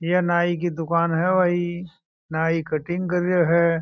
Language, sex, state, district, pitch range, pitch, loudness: Marwari, male, Rajasthan, Churu, 165-175 Hz, 175 Hz, -22 LUFS